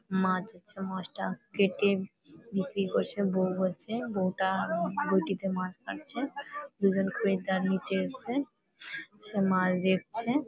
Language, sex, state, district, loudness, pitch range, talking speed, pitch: Bengali, female, West Bengal, Malda, -31 LUFS, 185-220 Hz, 115 wpm, 195 Hz